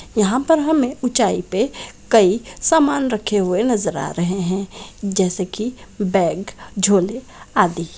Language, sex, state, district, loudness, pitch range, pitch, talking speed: Hindi, female, Bihar, Saran, -19 LUFS, 185-245 Hz, 205 Hz, 130 wpm